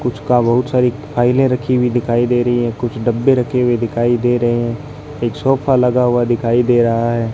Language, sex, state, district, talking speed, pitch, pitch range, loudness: Hindi, male, Rajasthan, Bikaner, 220 wpm, 120 Hz, 120-125 Hz, -15 LUFS